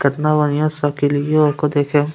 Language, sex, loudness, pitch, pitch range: Angika, male, -17 LUFS, 150 Hz, 145-150 Hz